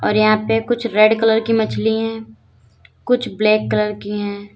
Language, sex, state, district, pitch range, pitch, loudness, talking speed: Hindi, female, Uttar Pradesh, Lalitpur, 205-225 Hz, 215 Hz, -17 LUFS, 185 wpm